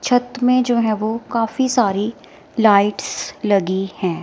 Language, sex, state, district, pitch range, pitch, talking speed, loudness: Hindi, female, Himachal Pradesh, Shimla, 200-245 Hz, 225 Hz, 140 wpm, -18 LUFS